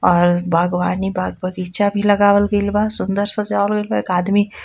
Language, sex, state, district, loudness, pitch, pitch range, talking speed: Bhojpuri, female, Jharkhand, Palamu, -17 LUFS, 200 Hz, 180-205 Hz, 180 wpm